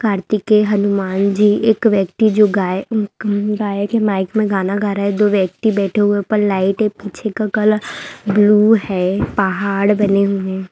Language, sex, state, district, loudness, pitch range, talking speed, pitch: Hindi, female, Bihar, Muzaffarpur, -16 LUFS, 195-215 Hz, 175 wpm, 205 Hz